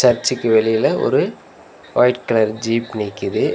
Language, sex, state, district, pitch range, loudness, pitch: Tamil, male, Tamil Nadu, Nilgiris, 110-125 Hz, -18 LUFS, 115 Hz